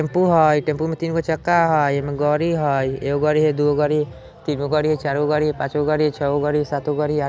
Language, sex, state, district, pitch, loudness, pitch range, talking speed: Bajjika, male, Bihar, Vaishali, 150 Hz, -20 LUFS, 145-155 Hz, 345 wpm